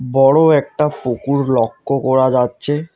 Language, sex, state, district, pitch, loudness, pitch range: Bengali, male, West Bengal, Alipurduar, 135 Hz, -15 LUFS, 125-145 Hz